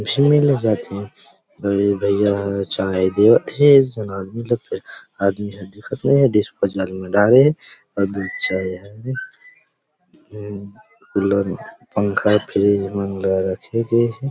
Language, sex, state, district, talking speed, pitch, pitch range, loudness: Chhattisgarhi, male, Chhattisgarh, Rajnandgaon, 130 wpm, 100 Hz, 100-115 Hz, -18 LUFS